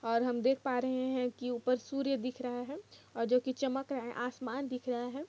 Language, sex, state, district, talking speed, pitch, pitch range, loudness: Hindi, female, Jharkhand, Jamtara, 250 wpm, 250 Hz, 245-270 Hz, -35 LUFS